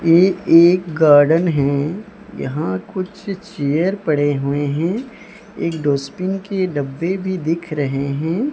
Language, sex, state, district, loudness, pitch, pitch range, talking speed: Hindi, male, Odisha, Sambalpur, -18 LUFS, 165 Hz, 145-190 Hz, 135 wpm